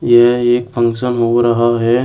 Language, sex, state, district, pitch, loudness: Hindi, male, Uttar Pradesh, Shamli, 120 Hz, -13 LUFS